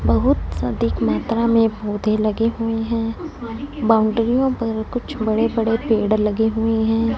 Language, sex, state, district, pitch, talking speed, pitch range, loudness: Hindi, female, Punjab, Fazilka, 225 Hz, 150 wpm, 215-230 Hz, -20 LUFS